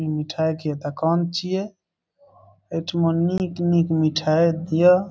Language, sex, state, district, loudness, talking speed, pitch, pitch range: Maithili, male, Bihar, Saharsa, -22 LUFS, 105 wpm, 165 Hz, 160-180 Hz